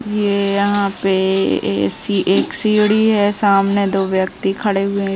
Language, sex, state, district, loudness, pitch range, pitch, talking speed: Hindi, female, Uttar Pradesh, Budaun, -16 LUFS, 195-205 Hz, 200 Hz, 175 wpm